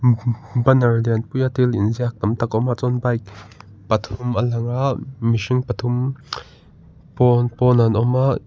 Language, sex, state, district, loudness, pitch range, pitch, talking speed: Mizo, male, Mizoram, Aizawl, -19 LUFS, 115-125 Hz, 120 Hz, 170 wpm